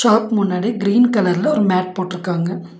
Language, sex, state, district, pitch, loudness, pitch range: Tamil, female, Tamil Nadu, Nilgiris, 190 Hz, -17 LUFS, 180-215 Hz